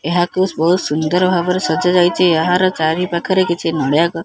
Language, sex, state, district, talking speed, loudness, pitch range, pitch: Odia, male, Odisha, Khordha, 170 wpm, -15 LUFS, 165-180 Hz, 175 Hz